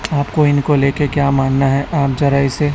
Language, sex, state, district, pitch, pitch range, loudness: Hindi, male, Chhattisgarh, Raipur, 140 Hz, 135-145 Hz, -15 LUFS